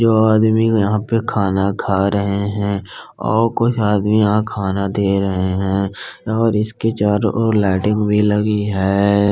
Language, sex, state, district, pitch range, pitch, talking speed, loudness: Hindi, male, Uttar Pradesh, Hamirpur, 100-110 Hz, 105 Hz, 155 wpm, -17 LUFS